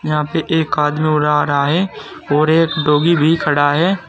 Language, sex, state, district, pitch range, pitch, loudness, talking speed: Hindi, male, Uttar Pradesh, Saharanpur, 150-165 Hz, 155 Hz, -15 LUFS, 190 wpm